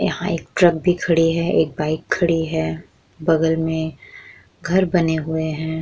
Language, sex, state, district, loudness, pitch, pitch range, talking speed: Hindi, female, Bihar, Vaishali, -20 LUFS, 160 Hz, 160-170 Hz, 165 wpm